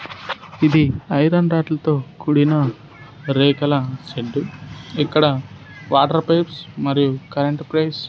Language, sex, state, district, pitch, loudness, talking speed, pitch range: Telugu, male, Andhra Pradesh, Sri Satya Sai, 145 Hz, -19 LUFS, 105 wpm, 140-155 Hz